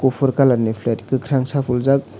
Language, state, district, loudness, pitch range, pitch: Kokborok, Tripura, West Tripura, -18 LUFS, 120-135 Hz, 130 Hz